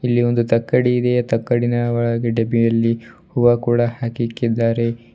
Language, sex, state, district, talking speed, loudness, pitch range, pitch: Kannada, male, Karnataka, Bidar, 130 wpm, -18 LUFS, 115-120 Hz, 120 Hz